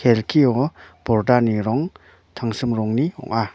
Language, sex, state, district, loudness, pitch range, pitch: Garo, male, Meghalaya, North Garo Hills, -20 LUFS, 110-135 Hz, 120 Hz